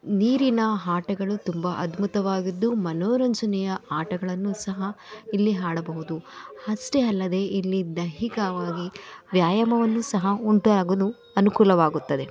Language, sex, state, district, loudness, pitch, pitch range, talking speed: Kannada, female, Karnataka, Belgaum, -24 LUFS, 195 Hz, 180-215 Hz, 85 wpm